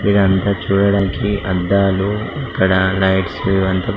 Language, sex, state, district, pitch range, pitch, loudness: Telugu, male, Telangana, Karimnagar, 95-100 Hz, 95 Hz, -16 LUFS